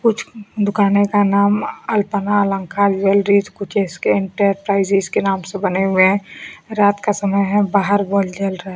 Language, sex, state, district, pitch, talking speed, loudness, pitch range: Hindi, female, Bihar, Kaimur, 200 Hz, 170 wpm, -17 LUFS, 195-205 Hz